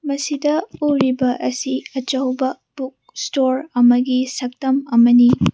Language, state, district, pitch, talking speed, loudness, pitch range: Manipuri, Manipur, Imphal West, 260 Hz, 95 wpm, -18 LUFS, 250-280 Hz